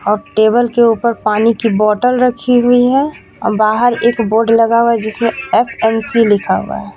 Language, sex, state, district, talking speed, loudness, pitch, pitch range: Hindi, female, Jharkhand, Ranchi, 180 wpm, -13 LUFS, 230 Hz, 215-240 Hz